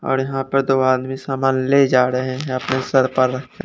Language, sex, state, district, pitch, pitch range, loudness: Hindi, male, Bihar, Kaimur, 130 Hz, 130-135 Hz, -18 LUFS